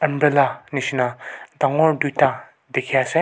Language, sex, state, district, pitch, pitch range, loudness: Nagamese, male, Nagaland, Kohima, 140 Hz, 130-155 Hz, -20 LUFS